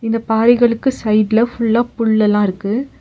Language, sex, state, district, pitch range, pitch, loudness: Tamil, female, Tamil Nadu, Nilgiris, 215-240 Hz, 225 Hz, -15 LUFS